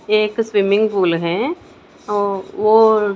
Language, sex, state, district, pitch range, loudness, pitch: Hindi, female, Chandigarh, Chandigarh, 200-220 Hz, -17 LUFS, 210 Hz